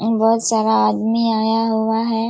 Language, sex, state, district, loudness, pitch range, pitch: Hindi, female, Chhattisgarh, Raigarh, -17 LUFS, 220-225 Hz, 225 Hz